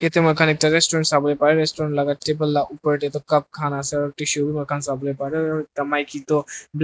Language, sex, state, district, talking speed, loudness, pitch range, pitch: Nagamese, male, Nagaland, Dimapur, 235 wpm, -21 LUFS, 145-155 Hz, 150 Hz